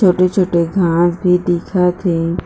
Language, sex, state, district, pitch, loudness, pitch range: Chhattisgarhi, female, Chhattisgarh, Jashpur, 180 Hz, -15 LUFS, 170-185 Hz